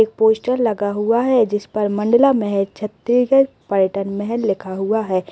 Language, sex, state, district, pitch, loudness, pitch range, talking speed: Hindi, female, Chhattisgarh, Kabirdham, 215 Hz, -18 LUFS, 200-235 Hz, 170 wpm